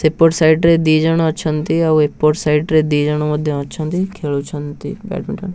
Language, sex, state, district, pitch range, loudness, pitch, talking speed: Odia, male, Odisha, Nuapada, 150-165 Hz, -16 LUFS, 155 Hz, 175 wpm